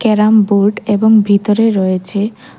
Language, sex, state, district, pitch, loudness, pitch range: Bengali, female, Tripura, West Tripura, 210 Hz, -12 LUFS, 200-220 Hz